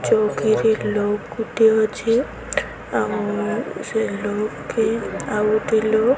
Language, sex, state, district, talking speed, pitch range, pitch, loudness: Odia, female, Odisha, Sambalpur, 125 wpm, 210-225 Hz, 220 Hz, -21 LUFS